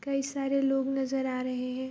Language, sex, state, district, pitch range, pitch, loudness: Hindi, female, Bihar, Saharsa, 255-275 Hz, 270 Hz, -30 LUFS